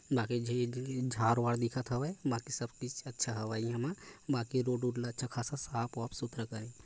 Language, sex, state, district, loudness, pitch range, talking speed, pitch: Chhattisgarhi, male, Chhattisgarh, Korba, -36 LUFS, 120-130 Hz, 190 wpm, 120 Hz